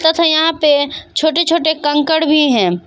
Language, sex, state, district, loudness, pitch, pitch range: Hindi, female, Jharkhand, Palamu, -13 LUFS, 315 Hz, 295-320 Hz